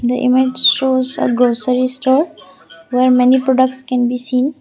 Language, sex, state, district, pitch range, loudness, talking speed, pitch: English, female, Assam, Kamrup Metropolitan, 250-260 Hz, -14 LUFS, 155 wpm, 255 Hz